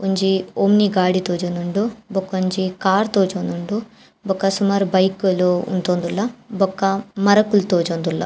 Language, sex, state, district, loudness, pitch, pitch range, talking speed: Tulu, female, Karnataka, Dakshina Kannada, -19 LUFS, 190 Hz, 185-200 Hz, 110 wpm